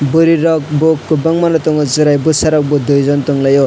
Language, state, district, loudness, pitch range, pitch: Kokborok, Tripura, West Tripura, -12 LUFS, 145-160 Hz, 150 Hz